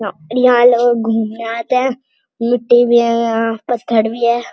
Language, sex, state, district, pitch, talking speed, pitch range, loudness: Hindi, male, Uttarakhand, Uttarkashi, 235 Hz, 185 wpm, 225-245 Hz, -14 LUFS